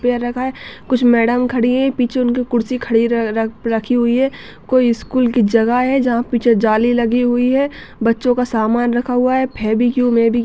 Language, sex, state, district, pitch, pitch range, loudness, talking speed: Hindi, female, Karnataka, Dakshina Kannada, 240 Hz, 230-250 Hz, -16 LUFS, 205 wpm